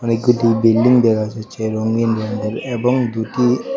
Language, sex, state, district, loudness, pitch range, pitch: Bengali, male, Tripura, West Tripura, -17 LUFS, 110-120 Hz, 115 Hz